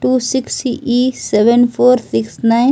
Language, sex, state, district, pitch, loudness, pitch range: Hindi, female, Delhi, New Delhi, 245 Hz, -14 LUFS, 230-255 Hz